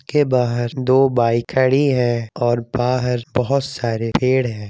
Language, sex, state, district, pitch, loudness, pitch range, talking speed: Hindi, male, Jharkhand, Jamtara, 125 Hz, -18 LUFS, 120-130 Hz, 155 wpm